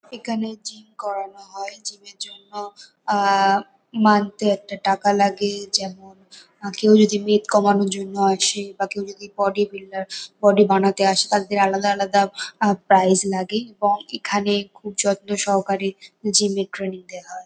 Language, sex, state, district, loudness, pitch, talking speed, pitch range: Bengali, female, West Bengal, Kolkata, -20 LUFS, 200 Hz, 150 wpm, 195-205 Hz